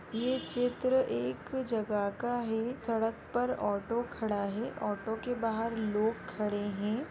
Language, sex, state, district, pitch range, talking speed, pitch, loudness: Hindi, female, Rajasthan, Nagaur, 210-245 Hz, 135 wpm, 225 Hz, -33 LUFS